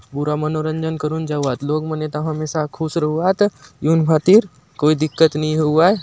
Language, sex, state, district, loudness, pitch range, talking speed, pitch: Halbi, male, Chhattisgarh, Bastar, -18 LUFS, 150-160 Hz, 160 wpm, 155 Hz